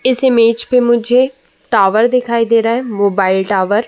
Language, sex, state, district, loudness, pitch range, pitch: Hindi, female, Uttar Pradesh, Muzaffarnagar, -13 LUFS, 210-250 Hz, 230 Hz